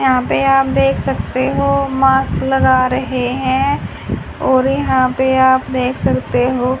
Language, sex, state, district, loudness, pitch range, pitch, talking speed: Hindi, female, Haryana, Charkhi Dadri, -15 LUFS, 250-265 Hz, 260 Hz, 150 wpm